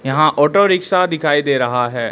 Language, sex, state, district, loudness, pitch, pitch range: Hindi, male, Arunachal Pradesh, Lower Dibang Valley, -15 LUFS, 145 Hz, 130-180 Hz